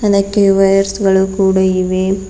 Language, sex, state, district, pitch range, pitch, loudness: Kannada, female, Karnataka, Bidar, 190-195 Hz, 195 Hz, -13 LUFS